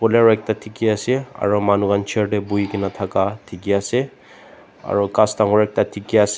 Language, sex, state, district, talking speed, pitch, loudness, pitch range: Nagamese, male, Nagaland, Dimapur, 190 wpm, 105 Hz, -19 LUFS, 100-110 Hz